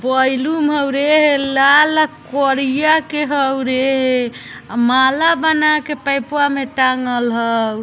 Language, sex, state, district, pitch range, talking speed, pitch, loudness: Bajjika, female, Bihar, Vaishali, 260-295 Hz, 125 wpm, 275 Hz, -15 LUFS